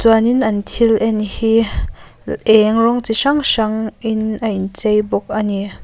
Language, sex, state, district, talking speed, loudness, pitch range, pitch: Mizo, female, Mizoram, Aizawl, 175 wpm, -16 LUFS, 215-225 Hz, 220 Hz